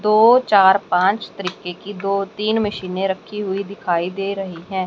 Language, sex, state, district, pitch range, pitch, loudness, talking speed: Hindi, male, Haryana, Charkhi Dadri, 190-210 Hz, 195 Hz, -19 LUFS, 170 wpm